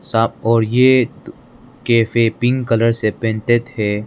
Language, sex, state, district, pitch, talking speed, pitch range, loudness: Hindi, male, Arunachal Pradesh, Lower Dibang Valley, 115 Hz, 130 wpm, 115-125 Hz, -16 LUFS